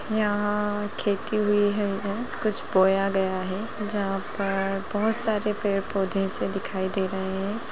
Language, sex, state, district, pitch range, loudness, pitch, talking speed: Hindi, female, Bihar, Lakhisarai, 195-210 Hz, -26 LUFS, 200 Hz, 140 wpm